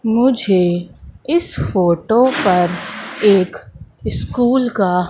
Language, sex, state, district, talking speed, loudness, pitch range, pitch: Hindi, female, Madhya Pradesh, Katni, 80 wpm, -16 LUFS, 180-245 Hz, 200 Hz